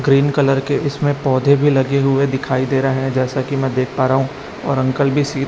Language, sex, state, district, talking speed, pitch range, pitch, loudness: Hindi, male, Chhattisgarh, Raipur, 250 wpm, 130-140 Hz, 135 Hz, -17 LUFS